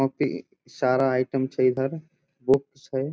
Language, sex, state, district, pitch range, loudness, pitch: Maithili, male, Bihar, Samastipur, 130-140 Hz, -25 LUFS, 135 Hz